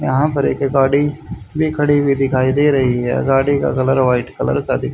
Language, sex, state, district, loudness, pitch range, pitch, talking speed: Hindi, male, Haryana, Charkhi Dadri, -16 LUFS, 130-145 Hz, 135 Hz, 220 wpm